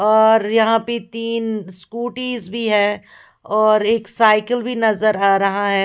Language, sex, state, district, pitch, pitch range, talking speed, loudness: Hindi, female, Odisha, Khordha, 220 Hz, 210-230 Hz, 155 wpm, -17 LUFS